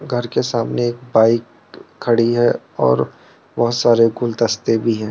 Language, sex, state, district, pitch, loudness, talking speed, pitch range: Hindi, male, Arunachal Pradesh, Lower Dibang Valley, 115 Hz, -17 LUFS, 155 wpm, 115-120 Hz